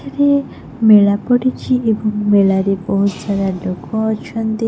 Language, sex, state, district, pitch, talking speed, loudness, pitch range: Odia, female, Odisha, Khordha, 215 Hz, 115 wpm, -15 LUFS, 195-225 Hz